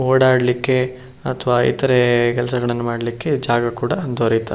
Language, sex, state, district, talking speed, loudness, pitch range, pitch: Kannada, male, Karnataka, Shimoga, 105 wpm, -18 LUFS, 120-130 Hz, 125 Hz